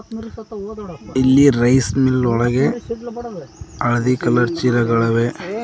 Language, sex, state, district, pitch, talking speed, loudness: Kannada, male, Karnataka, Koppal, 130 Hz, 75 wpm, -17 LUFS